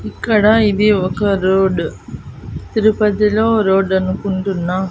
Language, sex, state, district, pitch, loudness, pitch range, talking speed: Telugu, female, Andhra Pradesh, Annamaya, 200 Hz, -15 LUFS, 190-210 Hz, 85 wpm